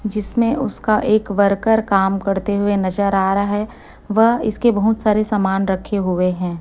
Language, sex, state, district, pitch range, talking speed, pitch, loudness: Hindi, female, Chhattisgarh, Raipur, 195-215 Hz, 170 wpm, 205 Hz, -18 LUFS